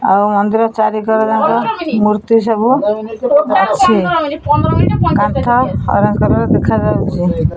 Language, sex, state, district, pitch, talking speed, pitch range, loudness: Odia, female, Odisha, Khordha, 220 Hz, 85 wpm, 205-230 Hz, -13 LUFS